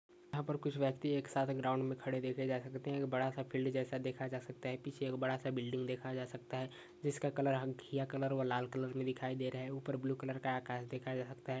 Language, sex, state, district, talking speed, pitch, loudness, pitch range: Hindi, male, Chhattisgarh, Sukma, 285 wpm, 130 Hz, -40 LUFS, 130-135 Hz